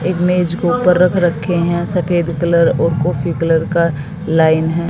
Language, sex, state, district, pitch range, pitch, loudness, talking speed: Hindi, female, Haryana, Jhajjar, 165-175 Hz, 170 Hz, -15 LUFS, 185 wpm